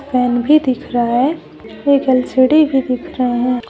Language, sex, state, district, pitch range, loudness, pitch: Hindi, female, Jharkhand, Deoghar, 245-280 Hz, -15 LUFS, 255 Hz